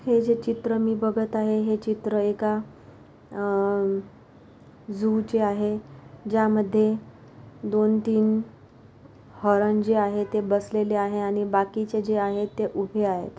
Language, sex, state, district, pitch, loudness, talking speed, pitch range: Marathi, female, Maharashtra, Pune, 210 Hz, -25 LUFS, 120 wpm, 200-220 Hz